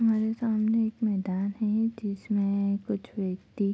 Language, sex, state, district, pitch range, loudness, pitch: Hindi, female, Bihar, Madhepura, 200-220 Hz, -28 LUFS, 210 Hz